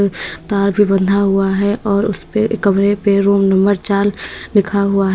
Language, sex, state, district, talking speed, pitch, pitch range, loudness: Hindi, female, Uttar Pradesh, Lalitpur, 175 wpm, 200 Hz, 195-205 Hz, -15 LUFS